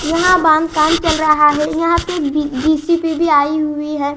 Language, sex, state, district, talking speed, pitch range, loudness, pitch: Hindi, female, Haryana, Jhajjar, 185 wpm, 300-330 Hz, -14 LUFS, 310 Hz